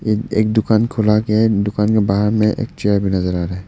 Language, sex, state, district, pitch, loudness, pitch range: Hindi, male, Arunachal Pradesh, Papum Pare, 105 Hz, -16 LUFS, 100-110 Hz